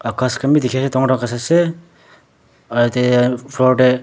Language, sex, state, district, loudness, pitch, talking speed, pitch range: Nagamese, male, Nagaland, Dimapur, -16 LUFS, 130 Hz, 195 wpm, 125-135 Hz